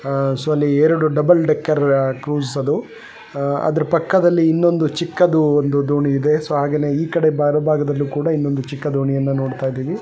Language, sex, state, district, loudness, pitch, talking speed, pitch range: Kannada, male, Karnataka, Bellary, -18 LUFS, 150 Hz, 170 wpm, 140-160 Hz